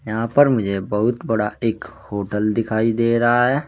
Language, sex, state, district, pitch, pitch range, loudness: Hindi, male, Uttar Pradesh, Saharanpur, 115 Hz, 105-120 Hz, -19 LUFS